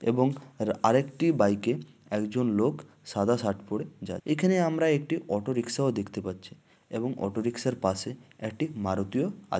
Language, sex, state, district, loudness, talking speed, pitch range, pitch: Bengali, male, West Bengal, Dakshin Dinajpur, -29 LUFS, 145 wpm, 100-135 Hz, 120 Hz